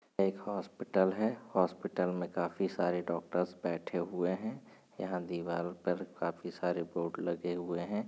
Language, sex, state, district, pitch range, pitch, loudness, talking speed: Hindi, male, Uttar Pradesh, Budaun, 85-95 Hz, 90 Hz, -36 LUFS, 150 wpm